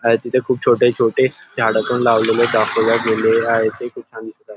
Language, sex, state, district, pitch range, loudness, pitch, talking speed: Marathi, male, Maharashtra, Nagpur, 110-120 Hz, -16 LUFS, 115 Hz, 210 wpm